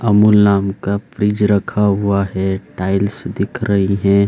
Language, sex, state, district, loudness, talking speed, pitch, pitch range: Hindi, male, Bihar, Saran, -16 LUFS, 155 wpm, 100 Hz, 100-105 Hz